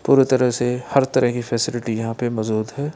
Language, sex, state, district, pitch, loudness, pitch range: Hindi, male, Bihar, Gopalganj, 120 Hz, -20 LUFS, 115-130 Hz